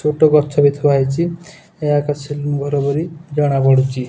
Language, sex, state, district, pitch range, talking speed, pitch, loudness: Odia, male, Odisha, Nuapada, 140-150 Hz, 160 wpm, 145 Hz, -16 LUFS